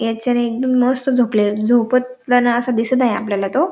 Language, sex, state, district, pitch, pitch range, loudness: Marathi, female, Maharashtra, Dhule, 245 Hz, 225-255 Hz, -17 LUFS